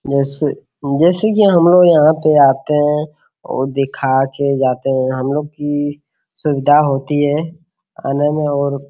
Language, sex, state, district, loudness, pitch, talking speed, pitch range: Hindi, male, Bihar, Araria, -15 LUFS, 145 Hz, 155 wpm, 140-150 Hz